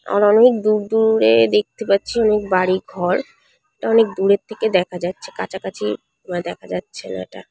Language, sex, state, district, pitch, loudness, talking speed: Bengali, female, West Bengal, Paschim Medinipur, 185 Hz, -18 LUFS, 170 wpm